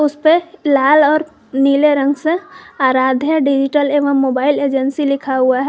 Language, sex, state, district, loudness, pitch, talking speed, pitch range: Hindi, female, Jharkhand, Garhwa, -14 LUFS, 285 Hz, 160 wpm, 270-305 Hz